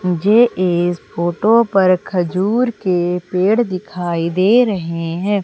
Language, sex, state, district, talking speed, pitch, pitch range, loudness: Hindi, female, Madhya Pradesh, Umaria, 120 wpm, 185 Hz, 175-210 Hz, -16 LUFS